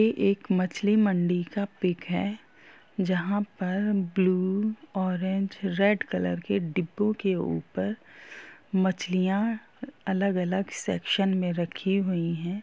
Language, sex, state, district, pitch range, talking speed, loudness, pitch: Hindi, female, Bihar, Gopalganj, 180-205 Hz, 120 wpm, -27 LUFS, 190 Hz